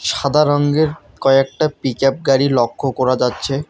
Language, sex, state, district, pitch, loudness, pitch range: Bengali, male, West Bengal, Alipurduar, 135 Hz, -16 LUFS, 130-145 Hz